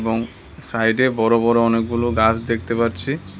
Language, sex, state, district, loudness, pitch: Bengali, male, Tripura, West Tripura, -19 LUFS, 115 Hz